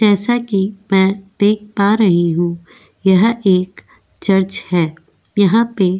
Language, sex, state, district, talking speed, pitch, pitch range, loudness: Hindi, female, Goa, North and South Goa, 140 wpm, 195 Hz, 185-210 Hz, -15 LUFS